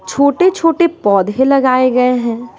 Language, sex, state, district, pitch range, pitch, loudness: Hindi, female, Bihar, West Champaran, 240-300 Hz, 255 Hz, -12 LUFS